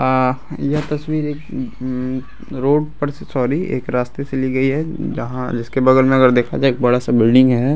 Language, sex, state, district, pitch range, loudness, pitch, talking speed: Hindi, male, Bihar, Araria, 125-145 Hz, -18 LUFS, 130 Hz, 215 wpm